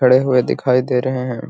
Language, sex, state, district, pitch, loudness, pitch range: Magahi, male, Bihar, Gaya, 125 Hz, -16 LUFS, 125-130 Hz